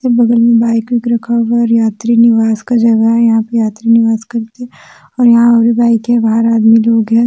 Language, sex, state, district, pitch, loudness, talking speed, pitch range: Hindi, female, Jharkhand, Deoghar, 230 Hz, -10 LUFS, 240 wpm, 225-235 Hz